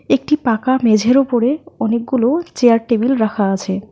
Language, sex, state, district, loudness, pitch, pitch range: Bengali, female, West Bengal, Alipurduar, -16 LUFS, 235 Hz, 220-260 Hz